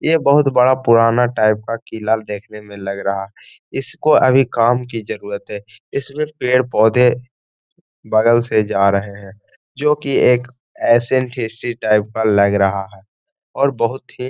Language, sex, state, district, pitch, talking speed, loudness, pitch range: Hindi, male, Bihar, Gaya, 115 Hz, 165 wpm, -17 LUFS, 105-130 Hz